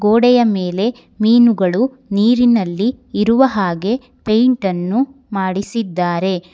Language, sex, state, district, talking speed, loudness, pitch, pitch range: Kannada, female, Karnataka, Bangalore, 85 wpm, -16 LUFS, 220 Hz, 190-245 Hz